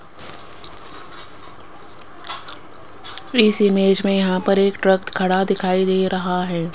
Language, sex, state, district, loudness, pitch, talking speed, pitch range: Hindi, female, Rajasthan, Jaipur, -18 LUFS, 190 Hz, 105 wpm, 185-195 Hz